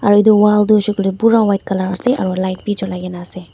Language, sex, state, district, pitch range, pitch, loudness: Nagamese, female, Nagaland, Dimapur, 185-210 Hz, 200 Hz, -15 LUFS